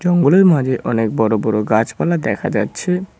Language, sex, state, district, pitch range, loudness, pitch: Bengali, male, West Bengal, Cooch Behar, 110-175 Hz, -16 LUFS, 130 Hz